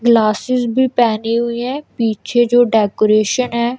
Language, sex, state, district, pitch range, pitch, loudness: Hindi, female, Punjab, Kapurthala, 220-245 Hz, 235 Hz, -15 LUFS